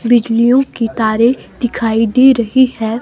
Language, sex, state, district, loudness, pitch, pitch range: Hindi, female, Himachal Pradesh, Shimla, -13 LUFS, 235 Hz, 225-250 Hz